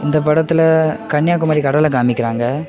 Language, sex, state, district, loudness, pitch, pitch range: Tamil, male, Tamil Nadu, Kanyakumari, -15 LUFS, 150 Hz, 140-160 Hz